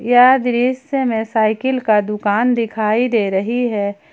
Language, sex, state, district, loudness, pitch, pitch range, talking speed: Hindi, female, Jharkhand, Ranchi, -16 LUFS, 230 Hz, 215-245 Hz, 145 wpm